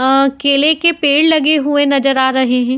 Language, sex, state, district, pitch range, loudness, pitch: Hindi, female, Uttar Pradesh, Etah, 265-300 Hz, -12 LUFS, 280 Hz